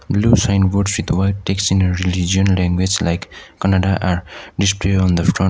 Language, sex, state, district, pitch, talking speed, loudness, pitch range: English, male, Sikkim, Gangtok, 95 Hz, 155 wpm, -17 LUFS, 90-100 Hz